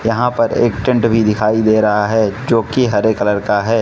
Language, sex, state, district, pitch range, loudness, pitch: Hindi, male, Manipur, Imphal West, 105-115 Hz, -14 LUFS, 110 Hz